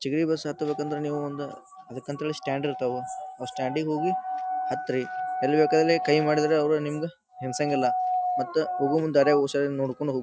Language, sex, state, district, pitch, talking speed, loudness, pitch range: Kannada, male, Karnataka, Dharwad, 150 Hz, 180 wpm, -26 LUFS, 145-170 Hz